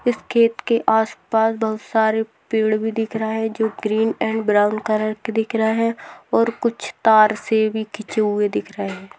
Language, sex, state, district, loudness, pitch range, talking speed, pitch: Hindi, female, Maharashtra, Dhule, -20 LUFS, 215-225 Hz, 190 wpm, 220 Hz